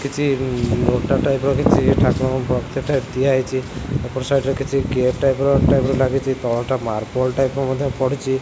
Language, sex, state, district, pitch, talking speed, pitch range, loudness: Odia, male, Odisha, Khordha, 130 Hz, 165 wpm, 130-135 Hz, -19 LUFS